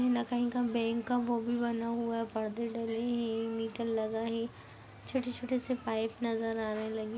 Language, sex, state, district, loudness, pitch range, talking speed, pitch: Hindi, female, Bihar, Sitamarhi, -34 LUFS, 225-240 Hz, 190 wpm, 230 Hz